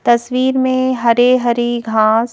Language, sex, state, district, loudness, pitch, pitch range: Hindi, female, Madhya Pradesh, Bhopal, -14 LUFS, 240 Hz, 235-255 Hz